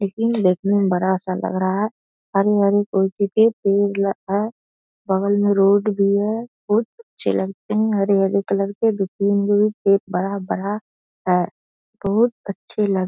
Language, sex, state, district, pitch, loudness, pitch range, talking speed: Hindi, female, Bihar, Vaishali, 200 Hz, -20 LUFS, 195-210 Hz, 155 wpm